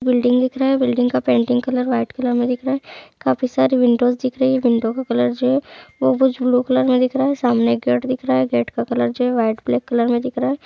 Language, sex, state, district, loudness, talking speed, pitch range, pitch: Hindi, female, Chhattisgarh, Sukma, -18 LUFS, 285 wpm, 220-255 Hz, 245 Hz